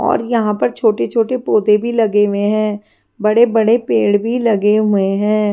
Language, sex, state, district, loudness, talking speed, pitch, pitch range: Hindi, female, Himachal Pradesh, Shimla, -15 LUFS, 160 wpm, 215 Hz, 210-230 Hz